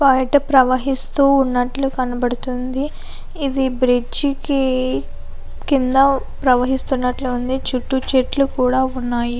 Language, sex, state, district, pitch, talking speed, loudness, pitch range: Telugu, female, Andhra Pradesh, Anantapur, 260 Hz, 75 wpm, -18 LUFS, 250-270 Hz